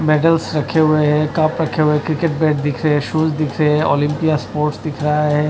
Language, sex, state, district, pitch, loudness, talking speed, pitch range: Hindi, male, Odisha, Nuapada, 155 Hz, -17 LUFS, 205 wpm, 150-155 Hz